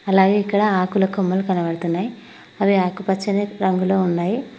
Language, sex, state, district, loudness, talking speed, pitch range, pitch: Telugu, female, Telangana, Mahabubabad, -20 LUFS, 120 wpm, 185-205 Hz, 195 Hz